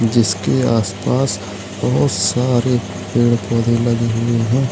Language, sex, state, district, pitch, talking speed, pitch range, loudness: Hindi, male, Uttar Pradesh, Lalitpur, 115 Hz, 115 wpm, 105-120 Hz, -17 LUFS